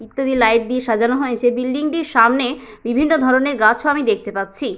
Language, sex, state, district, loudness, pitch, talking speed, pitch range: Bengali, female, West Bengal, Jalpaiguri, -17 LUFS, 250 Hz, 190 wpm, 225-270 Hz